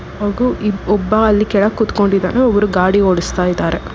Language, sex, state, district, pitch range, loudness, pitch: Kannada, female, Karnataka, Bangalore, 190-215 Hz, -15 LUFS, 205 Hz